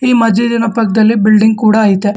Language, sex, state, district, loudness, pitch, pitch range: Kannada, male, Karnataka, Bangalore, -10 LUFS, 220 Hz, 215-230 Hz